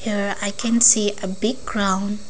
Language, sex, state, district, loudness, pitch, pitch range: English, female, Arunachal Pradesh, Lower Dibang Valley, -19 LUFS, 205 Hz, 200-215 Hz